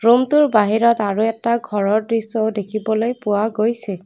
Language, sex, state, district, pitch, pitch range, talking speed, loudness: Assamese, female, Assam, Kamrup Metropolitan, 220 Hz, 210-235 Hz, 135 wpm, -18 LUFS